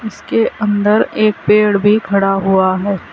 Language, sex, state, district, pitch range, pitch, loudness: Hindi, female, Uttar Pradesh, Saharanpur, 195-215 Hz, 205 Hz, -14 LUFS